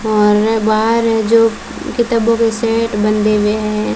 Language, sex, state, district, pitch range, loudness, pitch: Hindi, female, Rajasthan, Bikaner, 215-230 Hz, -14 LUFS, 220 Hz